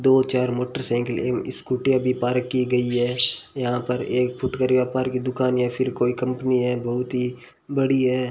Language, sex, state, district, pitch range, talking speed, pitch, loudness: Hindi, male, Rajasthan, Bikaner, 125-130 Hz, 180 wpm, 125 Hz, -22 LUFS